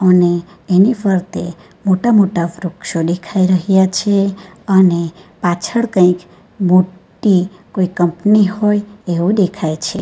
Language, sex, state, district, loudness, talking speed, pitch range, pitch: Gujarati, female, Gujarat, Valsad, -15 LUFS, 115 wpm, 175-200 Hz, 185 Hz